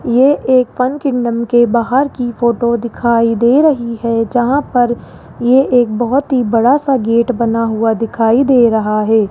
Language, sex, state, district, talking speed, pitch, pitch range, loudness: Hindi, male, Rajasthan, Jaipur, 175 wpm, 240 Hz, 230-255 Hz, -13 LUFS